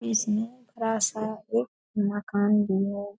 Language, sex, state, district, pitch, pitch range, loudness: Hindi, female, Bihar, Darbhanga, 215 Hz, 205-225 Hz, -27 LUFS